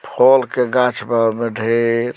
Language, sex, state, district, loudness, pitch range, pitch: Bhojpuri, male, Bihar, Muzaffarpur, -16 LUFS, 115-125 Hz, 120 Hz